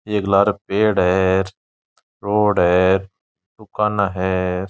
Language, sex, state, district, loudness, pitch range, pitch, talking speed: Rajasthani, male, Rajasthan, Churu, -18 LUFS, 95-105 Hz, 95 Hz, 100 wpm